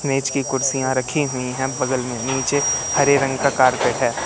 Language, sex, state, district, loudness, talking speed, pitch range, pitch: Hindi, male, Madhya Pradesh, Katni, -19 LUFS, 195 wpm, 130-140 Hz, 135 Hz